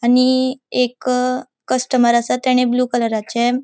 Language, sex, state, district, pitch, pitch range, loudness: Konkani, female, Goa, North and South Goa, 250 Hz, 240-255 Hz, -17 LUFS